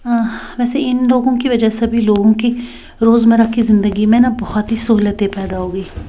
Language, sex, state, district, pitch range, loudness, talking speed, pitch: Hindi, female, Bihar, West Champaran, 210-240 Hz, -14 LUFS, 195 wpm, 230 Hz